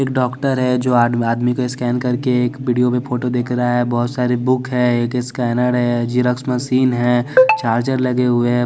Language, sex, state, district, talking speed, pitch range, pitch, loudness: Hindi, male, Bihar, West Champaran, 210 wpm, 120-125 Hz, 125 Hz, -17 LUFS